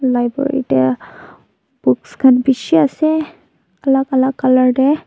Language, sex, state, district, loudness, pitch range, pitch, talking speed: Nagamese, female, Nagaland, Dimapur, -15 LUFS, 250-280 Hz, 265 Hz, 120 wpm